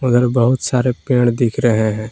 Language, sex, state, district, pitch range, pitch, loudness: Hindi, male, Jharkhand, Palamu, 120-125 Hz, 120 Hz, -16 LUFS